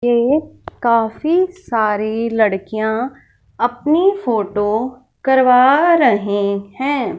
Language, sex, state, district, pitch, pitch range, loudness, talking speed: Hindi, female, Punjab, Fazilka, 240 Hz, 215-280 Hz, -16 LUFS, 75 wpm